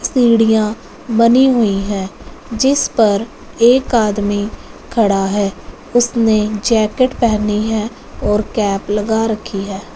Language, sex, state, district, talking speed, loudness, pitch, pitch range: Hindi, female, Punjab, Fazilka, 115 wpm, -15 LUFS, 220 Hz, 205-235 Hz